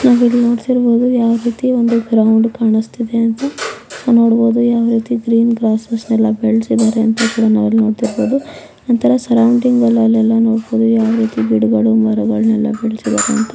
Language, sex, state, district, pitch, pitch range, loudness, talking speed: Kannada, female, Karnataka, Belgaum, 230 Hz, 225-235 Hz, -13 LUFS, 135 wpm